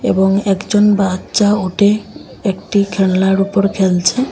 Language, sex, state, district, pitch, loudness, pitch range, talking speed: Bengali, female, Assam, Hailakandi, 195 Hz, -14 LUFS, 190-205 Hz, 110 wpm